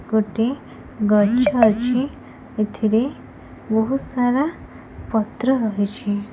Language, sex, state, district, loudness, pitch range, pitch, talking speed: Odia, female, Odisha, Khordha, -20 LUFS, 215-255 Hz, 225 Hz, 75 wpm